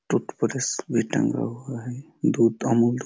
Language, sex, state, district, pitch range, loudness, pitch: Hindi, male, Chhattisgarh, Raigarh, 115-130 Hz, -24 LUFS, 120 Hz